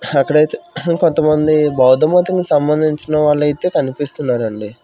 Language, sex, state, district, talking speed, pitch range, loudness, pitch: Telugu, male, Andhra Pradesh, Manyam, 110 wpm, 140-155 Hz, -15 LUFS, 150 Hz